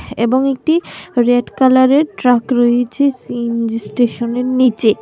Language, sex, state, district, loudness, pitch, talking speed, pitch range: Bengali, female, Tripura, West Tripura, -14 LUFS, 245 Hz, 110 wpm, 235-260 Hz